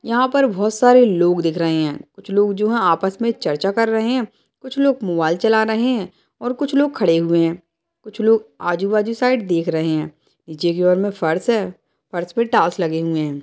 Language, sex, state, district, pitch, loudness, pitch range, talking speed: Hindi, female, Bihar, Jamui, 200 Hz, -18 LUFS, 170-235 Hz, 220 wpm